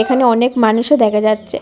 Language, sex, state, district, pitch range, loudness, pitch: Bengali, female, Tripura, West Tripura, 215-250 Hz, -13 LUFS, 230 Hz